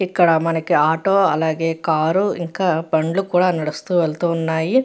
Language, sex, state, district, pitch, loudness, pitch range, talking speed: Telugu, female, Andhra Pradesh, Guntur, 165 Hz, -18 LUFS, 160-185 Hz, 135 wpm